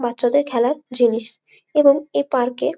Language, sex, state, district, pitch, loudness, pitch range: Bengali, female, West Bengal, Malda, 255 Hz, -19 LUFS, 240-285 Hz